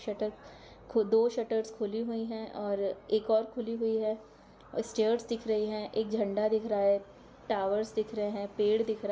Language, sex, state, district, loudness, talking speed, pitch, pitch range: Hindi, female, Chhattisgarh, Raigarh, -32 LUFS, 195 wpm, 220 Hz, 210-225 Hz